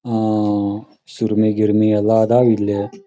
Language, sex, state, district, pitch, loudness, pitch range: Kannada, male, Karnataka, Dharwad, 110 Hz, -17 LUFS, 105-110 Hz